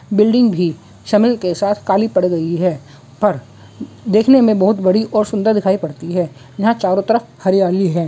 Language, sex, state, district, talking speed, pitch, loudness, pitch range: Hindi, female, West Bengal, Jhargram, 185 wpm, 190 Hz, -15 LUFS, 170-215 Hz